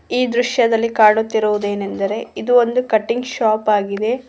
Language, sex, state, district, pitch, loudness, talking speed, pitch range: Kannada, female, Karnataka, Koppal, 225 Hz, -17 LUFS, 100 wpm, 215-245 Hz